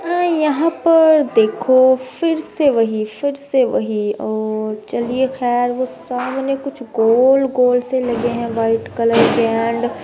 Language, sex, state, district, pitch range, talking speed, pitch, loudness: Hindi, female, Bihar, Gaya, 230-275 Hz, 135 wpm, 250 Hz, -16 LUFS